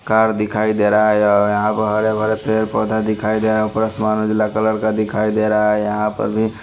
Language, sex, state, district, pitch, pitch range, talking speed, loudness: Hindi, male, Haryana, Charkhi Dadri, 110 Hz, 105-110 Hz, 180 wpm, -17 LUFS